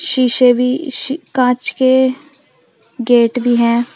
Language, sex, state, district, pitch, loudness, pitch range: Hindi, female, Uttar Pradesh, Shamli, 255 Hz, -14 LUFS, 245-265 Hz